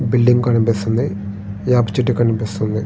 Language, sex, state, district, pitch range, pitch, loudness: Telugu, male, Andhra Pradesh, Srikakulam, 105-120 Hz, 115 Hz, -17 LUFS